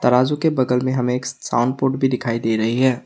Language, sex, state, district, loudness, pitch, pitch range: Hindi, male, Assam, Sonitpur, -19 LUFS, 125 Hz, 120-130 Hz